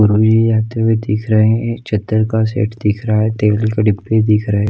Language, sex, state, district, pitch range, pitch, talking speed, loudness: Hindi, male, Chhattisgarh, Bilaspur, 105-110 Hz, 110 Hz, 215 wpm, -15 LUFS